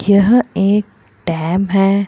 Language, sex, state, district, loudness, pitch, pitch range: Hindi, female, Bihar, Purnia, -15 LUFS, 200 Hz, 195-200 Hz